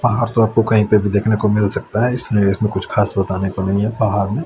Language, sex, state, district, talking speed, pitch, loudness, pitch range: Hindi, male, Chandigarh, Chandigarh, 280 wpm, 105 Hz, -17 LUFS, 100-110 Hz